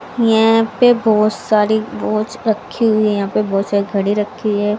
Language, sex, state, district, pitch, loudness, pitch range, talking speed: Hindi, female, Haryana, Rohtak, 215 Hz, -16 LUFS, 205-225 Hz, 185 wpm